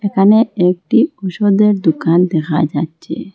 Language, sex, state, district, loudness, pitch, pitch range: Bengali, female, Assam, Hailakandi, -14 LUFS, 185 Hz, 165-210 Hz